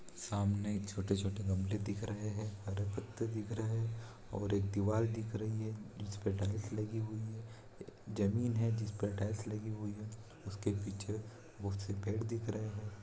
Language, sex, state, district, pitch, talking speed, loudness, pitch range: Hindi, male, Bihar, Araria, 105 Hz, 180 wpm, -39 LUFS, 100-110 Hz